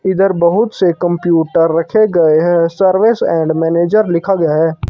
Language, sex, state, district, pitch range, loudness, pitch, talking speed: Hindi, male, Himachal Pradesh, Shimla, 165-195 Hz, -12 LUFS, 170 Hz, 160 wpm